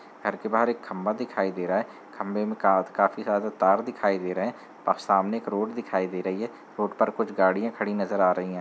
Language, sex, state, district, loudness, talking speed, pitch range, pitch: Hindi, male, Uttar Pradesh, Muzaffarnagar, -26 LUFS, 245 wpm, 95-110 Hz, 100 Hz